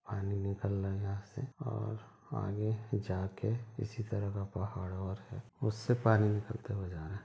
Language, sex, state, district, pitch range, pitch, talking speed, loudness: Hindi, male, Bihar, Madhepura, 100-115 Hz, 105 Hz, 180 wpm, -37 LUFS